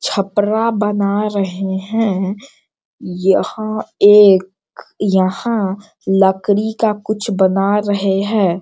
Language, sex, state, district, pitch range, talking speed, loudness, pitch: Hindi, male, Bihar, Sitamarhi, 190-215 Hz, 95 wpm, -15 LUFS, 200 Hz